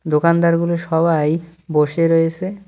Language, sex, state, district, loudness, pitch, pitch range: Bengali, male, West Bengal, Cooch Behar, -17 LUFS, 165 Hz, 160-170 Hz